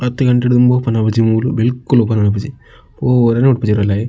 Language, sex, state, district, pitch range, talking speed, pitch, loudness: Tulu, male, Karnataka, Dakshina Kannada, 110-125 Hz, 205 wpm, 120 Hz, -14 LUFS